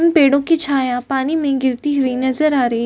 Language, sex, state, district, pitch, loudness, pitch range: Hindi, female, Uttar Pradesh, Jyotiba Phule Nagar, 275 Hz, -16 LUFS, 260-295 Hz